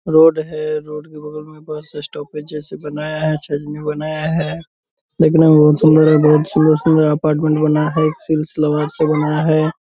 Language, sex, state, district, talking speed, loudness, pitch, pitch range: Hindi, male, Bihar, Purnia, 185 wpm, -15 LUFS, 155 Hz, 150-155 Hz